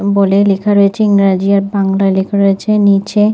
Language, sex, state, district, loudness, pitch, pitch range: Bengali, female, West Bengal, North 24 Parganas, -11 LUFS, 200 Hz, 195-205 Hz